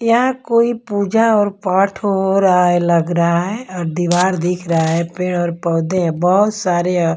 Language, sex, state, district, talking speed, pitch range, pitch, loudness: Hindi, female, Punjab, Kapurthala, 175 wpm, 175-205 Hz, 180 Hz, -16 LUFS